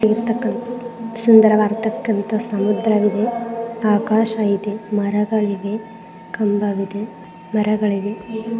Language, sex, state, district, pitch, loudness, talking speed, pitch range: Kannada, female, Karnataka, Dharwad, 215 Hz, -19 LUFS, 40 wpm, 210-225 Hz